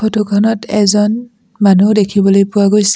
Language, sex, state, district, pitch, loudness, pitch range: Assamese, female, Assam, Sonitpur, 210 Hz, -12 LUFS, 200-215 Hz